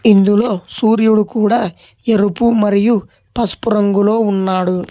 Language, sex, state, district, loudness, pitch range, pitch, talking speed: Telugu, male, Telangana, Hyderabad, -14 LUFS, 200-225 Hz, 210 Hz, 100 wpm